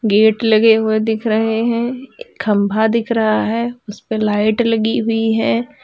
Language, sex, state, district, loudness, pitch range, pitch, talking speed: Hindi, female, Uttar Pradesh, Lalitpur, -16 LUFS, 220-235 Hz, 225 Hz, 165 wpm